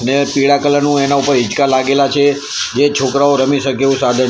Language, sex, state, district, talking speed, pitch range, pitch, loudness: Gujarati, male, Gujarat, Gandhinagar, 225 wpm, 135-145 Hz, 140 Hz, -13 LUFS